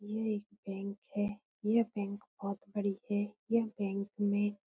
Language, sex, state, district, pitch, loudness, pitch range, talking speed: Hindi, female, Bihar, Saran, 205 Hz, -36 LUFS, 200-215 Hz, 155 wpm